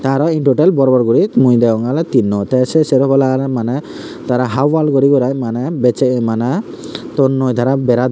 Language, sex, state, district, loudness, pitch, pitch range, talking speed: Chakma, male, Tripura, Unakoti, -14 LUFS, 130 Hz, 125-135 Hz, 215 wpm